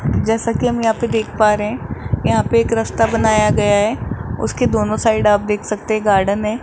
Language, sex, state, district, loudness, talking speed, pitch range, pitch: Hindi, male, Rajasthan, Jaipur, -17 LUFS, 210 wpm, 205-225 Hz, 215 Hz